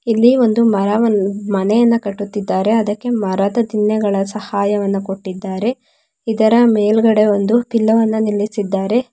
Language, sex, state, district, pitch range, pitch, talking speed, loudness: Kannada, female, Karnataka, Mysore, 200-230 Hz, 215 Hz, 100 wpm, -16 LUFS